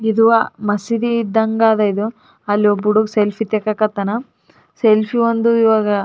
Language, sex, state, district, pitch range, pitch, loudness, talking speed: Kannada, female, Karnataka, Raichur, 210-225 Hz, 220 Hz, -16 LUFS, 130 wpm